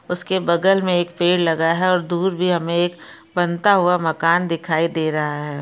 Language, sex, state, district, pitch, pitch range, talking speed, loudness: Hindi, female, Bihar, Samastipur, 175 Hz, 165-180 Hz, 205 wpm, -19 LUFS